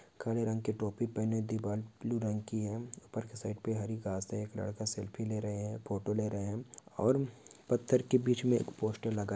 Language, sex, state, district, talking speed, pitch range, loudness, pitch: Hindi, male, Uttar Pradesh, Varanasi, 235 wpm, 105-120 Hz, -36 LUFS, 110 Hz